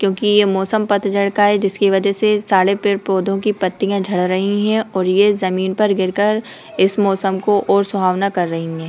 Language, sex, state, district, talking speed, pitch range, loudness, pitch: Hindi, female, Uttar Pradesh, Budaun, 210 wpm, 190-205 Hz, -16 LUFS, 200 Hz